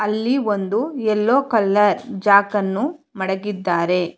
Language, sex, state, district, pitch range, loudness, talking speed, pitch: Kannada, female, Karnataka, Bangalore, 195-225 Hz, -19 LUFS, 85 wpm, 210 Hz